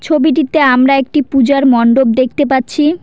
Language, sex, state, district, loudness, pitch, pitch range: Bengali, female, West Bengal, Cooch Behar, -11 LUFS, 275 Hz, 255-300 Hz